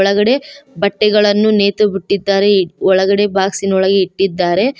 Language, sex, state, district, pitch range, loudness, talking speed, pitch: Kannada, female, Karnataka, Koppal, 195-210 Hz, -13 LUFS, 115 wpm, 200 Hz